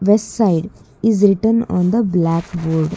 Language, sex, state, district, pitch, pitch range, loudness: English, female, Karnataka, Bangalore, 195 Hz, 170-215 Hz, -16 LUFS